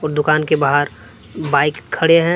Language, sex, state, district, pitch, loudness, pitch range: Hindi, male, Jharkhand, Deoghar, 150 Hz, -16 LUFS, 145-155 Hz